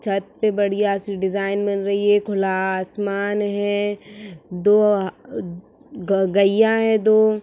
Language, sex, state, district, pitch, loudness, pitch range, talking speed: Hindi, female, Uttar Pradesh, Etah, 200 Hz, -20 LUFS, 195-210 Hz, 120 wpm